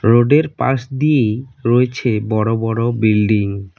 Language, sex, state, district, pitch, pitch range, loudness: Bengali, male, West Bengal, Cooch Behar, 115 Hz, 110-130 Hz, -16 LUFS